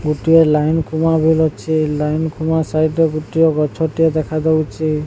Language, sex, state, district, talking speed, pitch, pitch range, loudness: Odia, male, Odisha, Sambalpur, 155 wpm, 160 Hz, 155-160 Hz, -16 LUFS